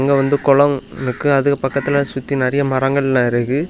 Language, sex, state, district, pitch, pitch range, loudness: Tamil, male, Tamil Nadu, Kanyakumari, 140 Hz, 135-140 Hz, -16 LUFS